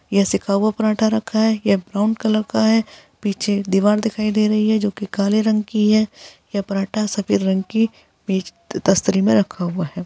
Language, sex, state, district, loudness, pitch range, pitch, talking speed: Hindi, female, Bihar, Gaya, -19 LUFS, 200-215 Hz, 210 Hz, 205 wpm